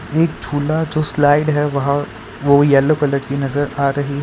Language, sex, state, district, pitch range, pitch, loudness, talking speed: Hindi, male, Gujarat, Valsad, 140-150 Hz, 145 Hz, -16 LUFS, 200 wpm